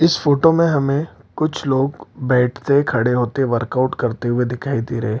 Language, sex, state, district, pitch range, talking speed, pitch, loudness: Hindi, male, Bihar, Lakhisarai, 120-145 Hz, 195 wpm, 130 Hz, -18 LUFS